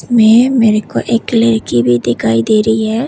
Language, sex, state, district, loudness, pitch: Hindi, female, Tripura, West Tripura, -11 LUFS, 220 Hz